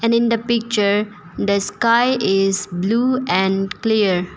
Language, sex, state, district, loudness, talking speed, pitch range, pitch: English, female, Arunachal Pradesh, Papum Pare, -18 LUFS, 135 wpm, 195-230 Hz, 210 Hz